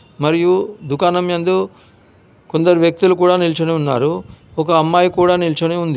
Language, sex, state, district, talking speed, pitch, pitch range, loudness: Telugu, male, Telangana, Hyderabad, 130 wpm, 165 Hz, 145-180 Hz, -15 LUFS